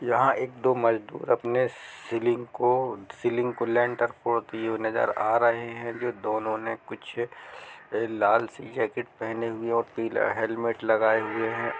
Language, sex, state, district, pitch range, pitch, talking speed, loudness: Hindi, male, Bihar, East Champaran, 110-120 Hz, 115 Hz, 135 wpm, -27 LUFS